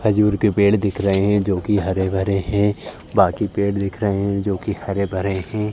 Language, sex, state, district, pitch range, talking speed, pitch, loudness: Hindi, male, Uttar Pradesh, Jalaun, 95-105 Hz, 200 wpm, 100 Hz, -20 LUFS